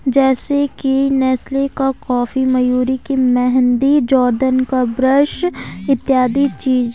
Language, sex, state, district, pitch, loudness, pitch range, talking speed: Hindi, female, Jharkhand, Ranchi, 260 Hz, -15 LUFS, 255-275 Hz, 110 wpm